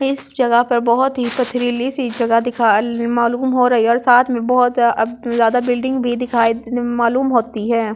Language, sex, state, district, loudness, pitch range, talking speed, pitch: Hindi, female, Delhi, New Delhi, -16 LUFS, 235-250 Hz, 195 wpm, 240 Hz